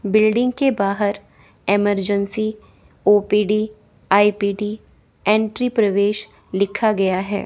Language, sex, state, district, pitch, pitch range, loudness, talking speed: Hindi, female, Chandigarh, Chandigarh, 205 Hz, 200-215 Hz, -19 LUFS, 90 wpm